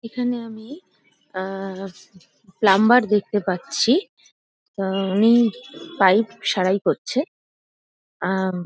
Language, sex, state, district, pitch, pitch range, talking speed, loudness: Bengali, female, West Bengal, Paschim Medinipur, 205 Hz, 190-240 Hz, 90 wpm, -20 LUFS